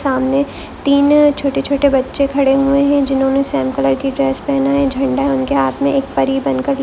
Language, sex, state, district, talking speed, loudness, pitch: Hindi, female, Goa, North and South Goa, 195 wpm, -15 LUFS, 275 Hz